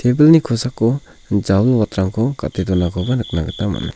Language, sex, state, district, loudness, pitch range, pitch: Garo, male, Meghalaya, South Garo Hills, -17 LUFS, 95-125 Hz, 115 Hz